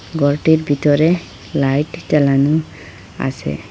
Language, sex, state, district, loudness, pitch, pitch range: Bengali, female, Assam, Hailakandi, -17 LUFS, 150 Hz, 145-160 Hz